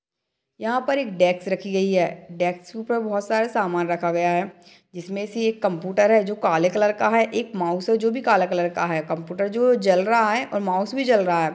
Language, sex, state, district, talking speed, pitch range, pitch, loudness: Hindi, female, Uttar Pradesh, Jalaun, 260 wpm, 175-225 Hz, 195 Hz, -22 LUFS